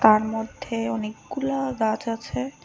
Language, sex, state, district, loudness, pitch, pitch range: Bengali, female, Tripura, West Tripura, -26 LUFS, 225 Hz, 215-245 Hz